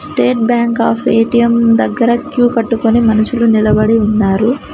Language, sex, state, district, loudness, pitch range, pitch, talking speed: Telugu, female, Telangana, Mahabubabad, -12 LUFS, 225-235 Hz, 230 Hz, 125 wpm